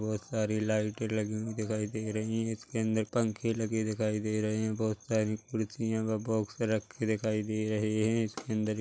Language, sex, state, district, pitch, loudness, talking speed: Hindi, male, Chhattisgarh, Korba, 110 Hz, -32 LUFS, 205 wpm